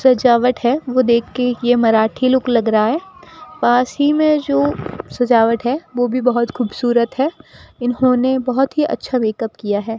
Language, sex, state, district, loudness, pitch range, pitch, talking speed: Hindi, female, Rajasthan, Bikaner, -16 LUFS, 235-260 Hz, 245 Hz, 175 wpm